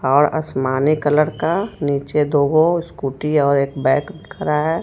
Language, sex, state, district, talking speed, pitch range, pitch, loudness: Hindi, female, Jharkhand, Ranchi, 160 wpm, 140-155 Hz, 150 Hz, -18 LUFS